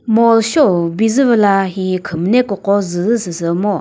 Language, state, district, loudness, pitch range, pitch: Chakhesang, Nagaland, Dimapur, -14 LUFS, 180-225 Hz, 200 Hz